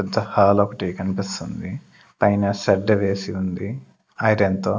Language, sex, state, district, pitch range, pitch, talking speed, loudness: Telugu, male, Andhra Pradesh, Sri Satya Sai, 95-105 Hz, 100 Hz, 125 wpm, -21 LUFS